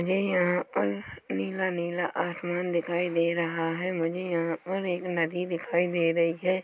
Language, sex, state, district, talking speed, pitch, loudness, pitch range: Hindi, male, Chhattisgarh, Korba, 170 wpm, 175 Hz, -28 LUFS, 165-180 Hz